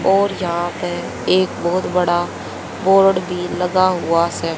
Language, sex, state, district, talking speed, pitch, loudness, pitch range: Hindi, female, Haryana, Charkhi Dadri, 145 wpm, 180 Hz, -18 LUFS, 170-185 Hz